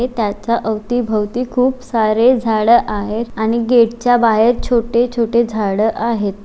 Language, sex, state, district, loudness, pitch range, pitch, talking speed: Marathi, female, Maharashtra, Chandrapur, -15 LUFS, 220-240 Hz, 230 Hz, 150 wpm